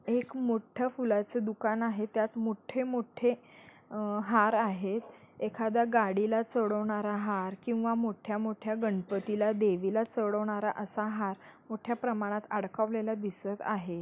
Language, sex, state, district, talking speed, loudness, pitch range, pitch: Hindi, female, Maharashtra, Solapur, 120 wpm, -32 LUFS, 210-230 Hz, 215 Hz